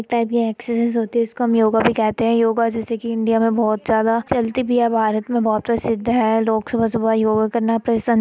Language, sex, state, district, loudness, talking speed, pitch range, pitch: Hindi, female, Uttar Pradesh, Etah, -18 LUFS, 250 wpm, 225-235 Hz, 230 Hz